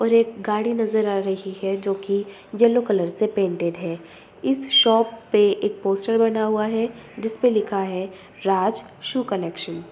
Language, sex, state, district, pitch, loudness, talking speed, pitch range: Hindi, female, Bihar, Sitamarhi, 205 Hz, -22 LUFS, 180 wpm, 195-225 Hz